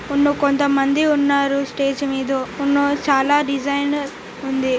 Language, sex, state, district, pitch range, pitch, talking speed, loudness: Telugu, female, Telangana, Nalgonda, 275-285 Hz, 280 Hz, 100 wpm, -19 LUFS